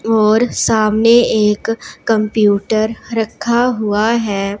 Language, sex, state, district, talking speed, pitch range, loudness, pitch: Hindi, female, Punjab, Pathankot, 90 wpm, 210-230 Hz, -14 LUFS, 220 Hz